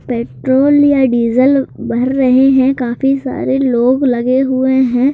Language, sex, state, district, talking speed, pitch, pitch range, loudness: Hindi, male, Madhya Pradesh, Bhopal, 140 wpm, 260 Hz, 250-270 Hz, -12 LUFS